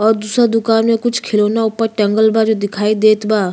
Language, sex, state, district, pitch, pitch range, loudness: Bhojpuri, female, Uttar Pradesh, Ghazipur, 220 Hz, 210-225 Hz, -14 LUFS